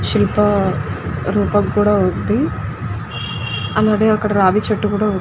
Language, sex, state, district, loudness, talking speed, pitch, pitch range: Telugu, female, Andhra Pradesh, Guntur, -17 LUFS, 115 wpm, 210 Hz, 200-215 Hz